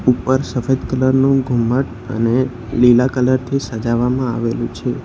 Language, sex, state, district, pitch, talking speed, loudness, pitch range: Gujarati, male, Gujarat, Valsad, 125 Hz, 140 wpm, -17 LUFS, 120-130 Hz